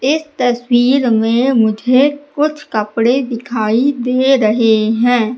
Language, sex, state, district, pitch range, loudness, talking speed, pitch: Hindi, female, Madhya Pradesh, Katni, 225-270 Hz, -14 LUFS, 110 wpm, 245 Hz